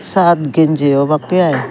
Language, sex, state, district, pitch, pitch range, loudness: Chakma, male, Tripura, Dhalai, 155 Hz, 140-165 Hz, -13 LUFS